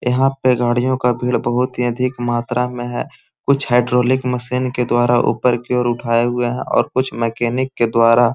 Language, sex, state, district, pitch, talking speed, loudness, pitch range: Magahi, male, Bihar, Gaya, 125 Hz, 200 wpm, -17 LUFS, 120-125 Hz